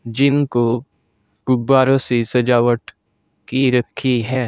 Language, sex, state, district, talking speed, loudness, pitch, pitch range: Hindi, male, Uttar Pradesh, Saharanpur, 95 wpm, -17 LUFS, 125 Hz, 115-130 Hz